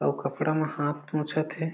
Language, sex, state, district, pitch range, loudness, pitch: Chhattisgarhi, male, Chhattisgarh, Jashpur, 150-155 Hz, -29 LUFS, 155 Hz